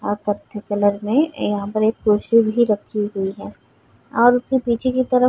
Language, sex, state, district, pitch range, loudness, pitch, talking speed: Hindi, female, Bihar, Muzaffarpur, 205-245 Hz, -19 LUFS, 215 Hz, 215 wpm